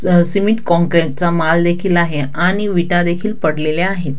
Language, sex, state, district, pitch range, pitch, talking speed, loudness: Marathi, female, Maharashtra, Dhule, 165-185 Hz, 175 Hz, 170 wpm, -15 LUFS